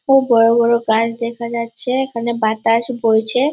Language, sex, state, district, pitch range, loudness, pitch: Bengali, female, West Bengal, Purulia, 230-245 Hz, -16 LUFS, 235 Hz